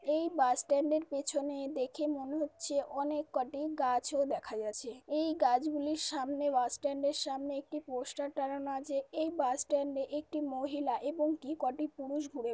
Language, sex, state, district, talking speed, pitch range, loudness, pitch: Bengali, female, West Bengal, Paschim Medinipur, 155 wpm, 270-300 Hz, -35 LUFS, 285 Hz